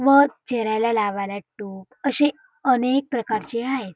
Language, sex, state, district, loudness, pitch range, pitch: Marathi, female, Maharashtra, Dhule, -22 LUFS, 210-275 Hz, 240 Hz